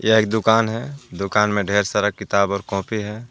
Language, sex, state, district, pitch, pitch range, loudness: Hindi, male, Jharkhand, Garhwa, 105 Hz, 100-110 Hz, -20 LUFS